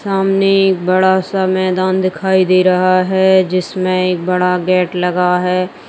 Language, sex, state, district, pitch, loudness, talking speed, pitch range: Hindi, female, Chhattisgarh, Kabirdham, 185 Hz, -13 LUFS, 155 wpm, 180-190 Hz